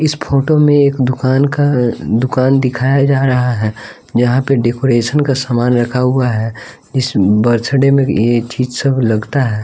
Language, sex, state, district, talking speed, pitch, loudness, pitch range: Hindi, male, Bihar, West Champaran, 175 wpm, 130 Hz, -13 LUFS, 120-135 Hz